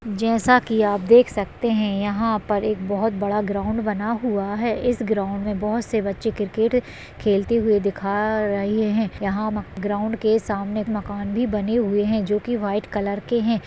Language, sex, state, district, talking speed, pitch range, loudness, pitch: Hindi, female, Uttarakhand, Uttarkashi, 185 wpm, 205-225 Hz, -22 LUFS, 210 Hz